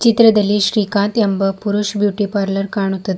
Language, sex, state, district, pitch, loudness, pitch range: Kannada, female, Karnataka, Bidar, 205 Hz, -16 LUFS, 195-210 Hz